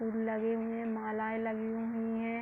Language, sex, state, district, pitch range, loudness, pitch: Hindi, female, Uttar Pradesh, Hamirpur, 220-225 Hz, -35 LUFS, 225 Hz